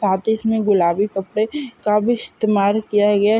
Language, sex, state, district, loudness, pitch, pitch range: Hindi, female, Maharashtra, Sindhudurg, -18 LUFS, 210 Hz, 200-220 Hz